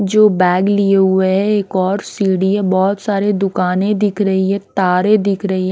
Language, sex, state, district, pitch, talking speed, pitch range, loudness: Hindi, female, Himachal Pradesh, Shimla, 195 Hz, 200 wpm, 190-205 Hz, -15 LUFS